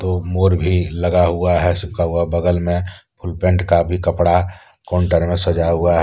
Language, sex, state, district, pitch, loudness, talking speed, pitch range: Hindi, male, Jharkhand, Deoghar, 90 Hz, -17 LUFS, 200 wpm, 85-90 Hz